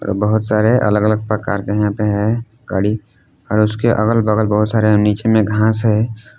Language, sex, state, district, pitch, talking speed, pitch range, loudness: Hindi, male, Jharkhand, Palamu, 105 Hz, 190 wpm, 105-110 Hz, -16 LUFS